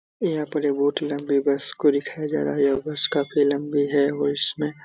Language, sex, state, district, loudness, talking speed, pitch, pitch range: Hindi, male, Bihar, Supaul, -23 LUFS, 235 wpm, 145 Hz, 140-150 Hz